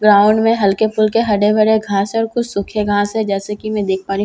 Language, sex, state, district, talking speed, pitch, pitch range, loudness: Hindi, female, Bihar, Katihar, 280 wpm, 210 Hz, 205-220 Hz, -15 LUFS